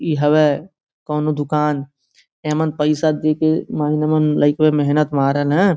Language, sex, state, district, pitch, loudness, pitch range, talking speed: Bhojpuri, male, Uttar Pradesh, Gorakhpur, 150 Hz, -17 LUFS, 145-155 Hz, 125 wpm